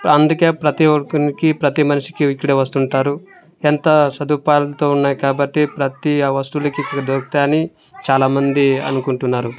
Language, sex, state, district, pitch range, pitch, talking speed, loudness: Telugu, male, Andhra Pradesh, Manyam, 135-150 Hz, 145 Hz, 120 wpm, -16 LUFS